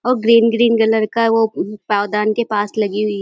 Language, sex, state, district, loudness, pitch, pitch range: Hindi, female, Uttar Pradesh, Deoria, -16 LUFS, 220 Hz, 210-230 Hz